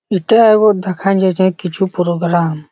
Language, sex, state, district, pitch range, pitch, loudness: Bengali, male, West Bengal, Jhargram, 175-195 Hz, 185 Hz, -13 LUFS